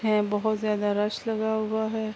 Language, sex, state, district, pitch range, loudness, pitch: Urdu, female, Andhra Pradesh, Anantapur, 210-220 Hz, -27 LUFS, 215 Hz